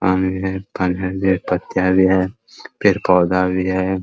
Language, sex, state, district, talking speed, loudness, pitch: Hindi, male, Bihar, Muzaffarpur, 120 wpm, -18 LUFS, 95 Hz